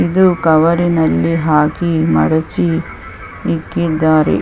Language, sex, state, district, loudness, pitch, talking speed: Kannada, female, Karnataka, Chamarajanagar, -14 LUFS, 155 Hz, 80 wpm